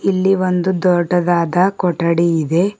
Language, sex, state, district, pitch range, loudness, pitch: Kannada, male, Karnataka, Bidar, 170-185 Hz, -16 LUFS, 180 Hz